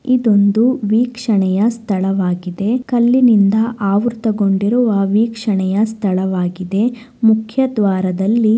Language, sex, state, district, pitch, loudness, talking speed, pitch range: Kannada, female, Karnataka, Shimoga, 215 Hz, -15 LUFS, 55 wpm, 195-235 Hz